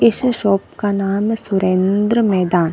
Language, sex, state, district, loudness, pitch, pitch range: Hindi, female, Chhattisgarh, Bilaspur, -17 LUFS, 200 Hz, 190-220 Hz